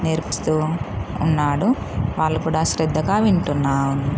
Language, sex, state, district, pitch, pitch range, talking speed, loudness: Telugu, female, Telangana, Karimnagar, 155 Hz, 140-160 Hz, 85 wpm, -20 LUFS